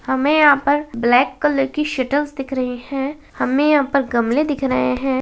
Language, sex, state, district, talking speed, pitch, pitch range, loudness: Hindi, female, Uttarakhand, Tehri Garhwal, 195 wpm, 275 Hz, 260-295 Hz, -18 LUFS